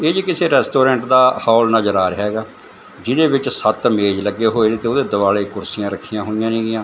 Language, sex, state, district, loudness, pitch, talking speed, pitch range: Punjabi, male, Punjab, Fazilka, -16 LUFS, 110 Hz, 220 wpm, 105-120 Hz